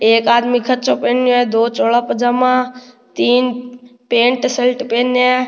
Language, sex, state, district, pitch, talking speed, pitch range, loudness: Rajasthani, male, Rajasthan, Nagaur, 245 Hz, 140 wpm, 240-250 Hz, -14 LUFS